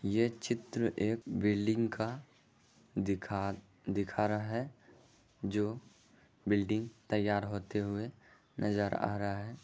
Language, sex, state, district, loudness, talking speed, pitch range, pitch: Magahi, male, Bihar, Jahanabad, -35 LUFS, 110 wpm, 100-115 Hz, 105 Hz